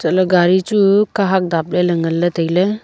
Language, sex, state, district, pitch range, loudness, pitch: Wancho, female, Arunachal Pradesh, Longding, 170-195 Hz, -15 LUFS, 180 Hz